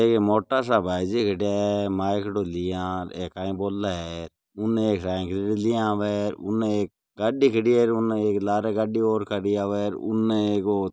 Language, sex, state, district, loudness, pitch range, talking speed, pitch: Marwari, male, Rajasthan, Nagaur, -24 LUFS, 95-110 Hz, 180 wpm, 105 Hz